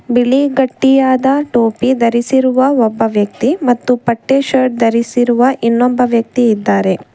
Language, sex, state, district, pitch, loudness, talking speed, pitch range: Kannada, female, Karnataka, Bangalore, 245 Hz, -12 LUFS, 110 wpm, 230-265 Hz